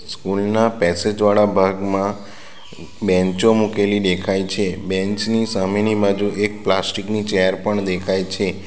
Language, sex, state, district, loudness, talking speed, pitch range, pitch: Gujarati, male, Gujarat, Valsad, -19 LUFS, 140 wpm, 95-105 Hz, 100 Hz